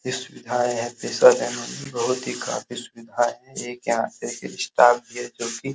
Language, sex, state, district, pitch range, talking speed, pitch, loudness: Hindi, male, Bihar, Araria, 120-125 Hz, 165 wpm, 120 Hz, -23 LUFS